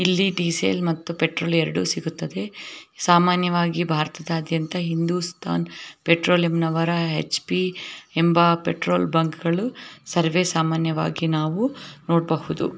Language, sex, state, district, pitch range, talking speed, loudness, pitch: Kannada, female, Karnataka, Belgaum, 160-175 Hz, 90 wpm, -22 LUFS, 165 Hz